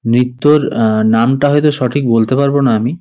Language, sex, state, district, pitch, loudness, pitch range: Bengali, male, West Bengal, Paschim Medinipur, 130 Hz, -12 LUFS, 115-145 Hz